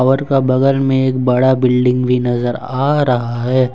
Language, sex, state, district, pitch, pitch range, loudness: Hindi, male, Jharkhand, Ranchi, 130 Hz, 125-135 Hz, -14 LUFS